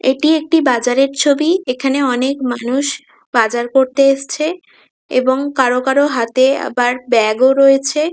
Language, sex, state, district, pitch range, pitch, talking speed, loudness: Bengali, female, West Bengal, Kolkata, 250-285 Hz, 270 Hz, 135 wpm, -14 LUFS